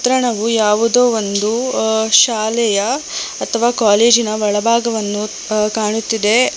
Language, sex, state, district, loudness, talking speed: Kannada, male, Karnataka, Bangalore, -15 LUFS, 90 wpm